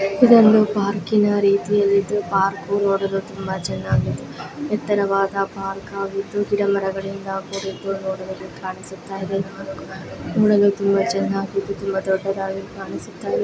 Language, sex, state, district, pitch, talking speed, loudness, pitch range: Kannada, female, Karnataka, Raichur, 195 Hz, 105 wpm, -21 LUFS, 195-200 Hz